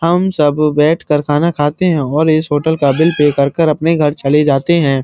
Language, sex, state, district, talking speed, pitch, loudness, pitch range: Hindi, male, Uttar Pradesh, Muzaffarnagar, 215 wpm, 150 Hz, -13 LUFS, 145-165 Hz